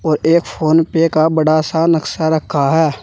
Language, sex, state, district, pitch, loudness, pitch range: Hindi, male, Uttar Pradesh, Saharanpur, 160 Hz, -14 LUFS, 155-165 Hz